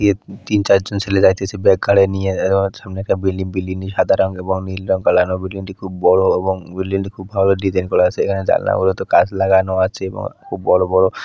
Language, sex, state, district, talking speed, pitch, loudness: Bengali, male, West Bengal, Purulia, 215 wpm, 95 Hz, -17 LUFS